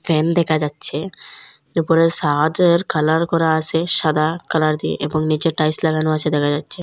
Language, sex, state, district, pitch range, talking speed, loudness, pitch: Bengali, female, Assam, Hailakandi, 155-165 Hz, 160 wpm, -17 LUFS, 155 Hz